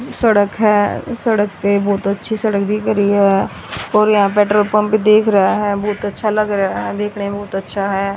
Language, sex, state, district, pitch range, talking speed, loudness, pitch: Hindi, female, Haryana, Rohtak, 200-215 Hz, 190 wpm, -16 LUFS, 205 Hz